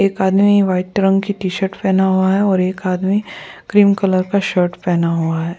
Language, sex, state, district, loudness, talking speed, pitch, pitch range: Hindi, female, Goa, North and South Goa, -16 LUFS, 205 wpm, 190 Hz, 185-195 Hz